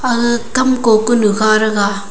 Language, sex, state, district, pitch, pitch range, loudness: Wancho, female, Arunachal Pradesh, Longding, 225 Hz, 215-240 Hz, -13 LUFS